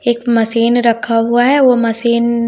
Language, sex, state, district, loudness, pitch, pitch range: Hindi, female, Bihar, West Champaran, -12 LUFS, 235 Hz, 230-240 Hz